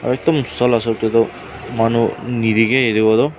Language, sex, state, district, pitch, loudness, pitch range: Nagamese, male, Nagaland, Kohima, 115 Hz, -16 LUFS, 115-125 Hz